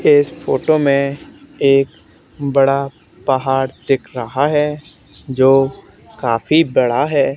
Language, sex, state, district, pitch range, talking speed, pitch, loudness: Hindi, male, Haryana, Charkhi Dadri, 130-150 Hz, 105 wpm, 135 Hz, -16 LUFS